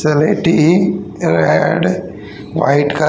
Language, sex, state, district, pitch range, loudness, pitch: Hindi, male, Haryana, Rohtak, 105-150 Hz, -14 LUFS, 145 Hz